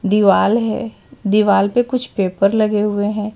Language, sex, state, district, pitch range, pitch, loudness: Hindi, female, Bihar, Patna, 200-225 Hz, 210 Hz, -16 LUFS